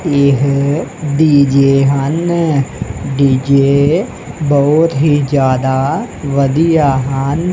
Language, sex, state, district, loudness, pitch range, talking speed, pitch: Punjabi, male, Punjab, Kapurthala, -13 LUFS, 135-155 Hz, 70 wpm, 140 Hz